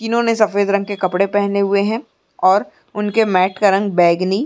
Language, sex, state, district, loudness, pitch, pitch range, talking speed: Hindi, female, Uttar Pradesh, Muzaffarnagar, -16 LUFS, 200 Hz, 190-215 Hz, 200 wpm